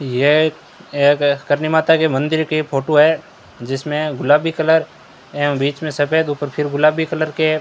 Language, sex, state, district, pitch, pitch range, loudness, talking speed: Hindi, male, Rajasthan, Bikaner, 150 Hz, 145-160 Hz, -17 LUFS, 175 wpm